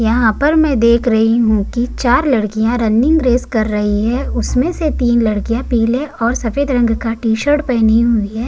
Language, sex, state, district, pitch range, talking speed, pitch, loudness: Hindi, female, Maharashtra, Chandrapur, 225-255 Hz, 190 wpm, 235 Hz, -14 LUFS